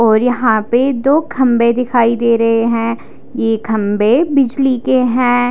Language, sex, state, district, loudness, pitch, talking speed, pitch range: Hindi, female, Odisha, Khordha, -13 LUFS, 240 Hz, 150 wpm, 230-255 Hz